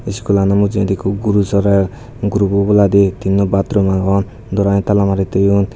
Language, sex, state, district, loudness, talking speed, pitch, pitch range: Chakma, male, Tripura, Dhalai, -15 LUFS, 145 wpm, 100 Hz, 95-100 Hz